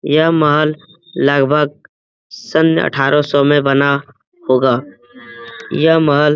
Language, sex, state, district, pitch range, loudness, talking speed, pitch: Hindi, male, Bihar, Jamui, 135-155 Hz, -14 LUFS, 115 wpm, 145 Hz